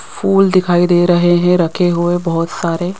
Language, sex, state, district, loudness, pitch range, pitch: Hindi, female, Rajasthan, Jaipur, -13 LUFS, 170-180 Hz, 175 Hz